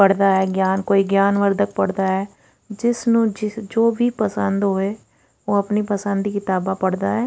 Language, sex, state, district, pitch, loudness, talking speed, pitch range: Punjabi, female, Punjab, Fazilka, 200 Hz, -20 LUFS, 175 wpm, 195-215 Hz